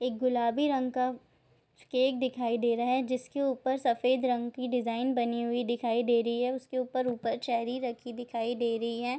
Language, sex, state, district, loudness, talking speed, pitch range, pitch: Hindi, female, Bihar, Darbhanga, -30 LUFS, 190 wpm, 235-255 Hz, 245 Hz